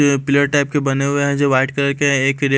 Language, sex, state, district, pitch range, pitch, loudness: Hindi, male, Haryana, Rohtak, 135-140 Hz, 140 Hz, -16 LUFS